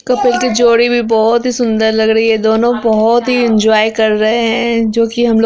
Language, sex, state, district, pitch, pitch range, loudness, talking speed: Hindi, female, Bihar, Araria, 230 Hz, 220-240 Hz, -11 LUFS, 220 wpm